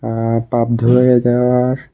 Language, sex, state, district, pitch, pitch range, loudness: Bengali, male, Tripura, West Tripura, 120 Hz, 115-125 Hz, -14 LUFS